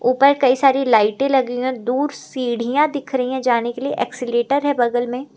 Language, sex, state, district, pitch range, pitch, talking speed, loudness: Hindi, female, Uttar Pradesh, Lucknow, 240-275 Hz, 255 Hz, 210 wpm, -18 LUFS